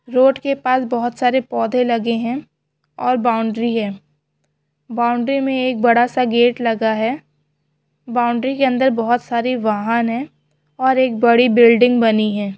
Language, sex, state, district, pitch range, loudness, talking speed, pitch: Hindi, female, Maharashtra, Solapur, 225-255 Hz, -17 LUFS, 155 wpm, 240 Hz